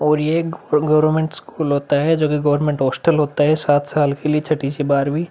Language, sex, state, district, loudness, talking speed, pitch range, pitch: Hindi, male, Uttar Pradesh, Budaun, -18 LUFS, 215 wpm, 145-155 Hz, 150 Hz